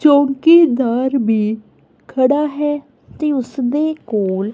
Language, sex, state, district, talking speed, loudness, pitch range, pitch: Punjabi, female, Punjab, Kapurthala, 95 wpm, -16 LUFS, 235-295 Hz, 270 Hz